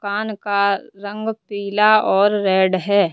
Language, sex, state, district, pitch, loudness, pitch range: Hindi, male, Rajasthan, Jaipur, 205 Hz, -18 LUFS, 200-210 Hz